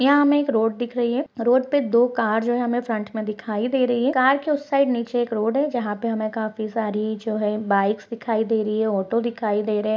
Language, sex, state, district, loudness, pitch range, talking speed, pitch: Hindi, female, Chhattisgarh, Bastar, -22 LUFS, 215-250 Hz, 270 wpm, 230 Hz